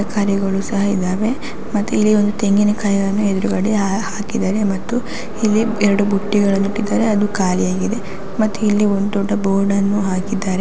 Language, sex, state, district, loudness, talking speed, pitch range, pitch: Kannada, female, Karnataka, Raichur, -18 LUFS, 140 wpm, 195-215 Hz, 205 Hz